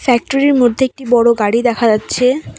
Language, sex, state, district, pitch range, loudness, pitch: Bengali, female, West Bengal, Cooch Behar, 235-260 Hz, -13 LUFS, 245 Hz